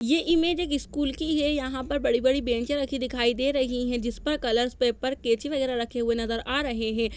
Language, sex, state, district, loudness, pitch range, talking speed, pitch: Hindi, female, Uttar Pradesh, Jyotiba Phule Nagar, -26 LUFS, 235-285 Hz, 225 wpm, 260 Hz